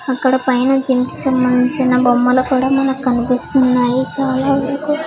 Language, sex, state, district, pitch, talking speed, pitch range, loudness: Telugu, female, Telangana, Hyderabad, 260 Hz, 130 wpm, 250-270 Hz, -15 LUFS